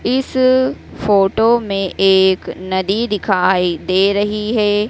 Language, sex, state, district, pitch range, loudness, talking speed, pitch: Hindi, female, Madhya Pradesh, Dhar, 190-220 Hz, -15 LUFS, 110 wpm, 200 Hz